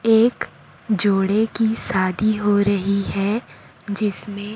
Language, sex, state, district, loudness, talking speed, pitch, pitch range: Hindi, female, Chhattisgarh, Raipur, -20 LUFS, 105 wpm, 205 Hz, 195-215 Hz